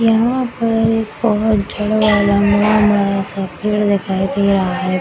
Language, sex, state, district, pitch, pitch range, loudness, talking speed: Hindi, female, Bihar, Samastipur, 210 Hz, 200-220 Hz, -15 LUFS, 155 wpm